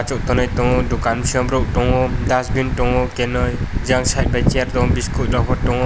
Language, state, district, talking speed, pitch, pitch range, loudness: Kokborok, Tripura, West Tripura, 175 wpm, 125 Hz, 120-125 Hz, -18 LUFS